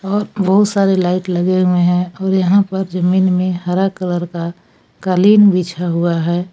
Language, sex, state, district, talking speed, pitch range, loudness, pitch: Hindi, female, Jharkhand, Palamu, 175 wpm, 180-190 Hz, -15 LUFS, 185 Hz